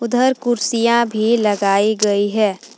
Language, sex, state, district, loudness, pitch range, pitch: Hindi, female, Jharkhand, Palamu, -16 LUFS, 210-235 Hz, 220 Hz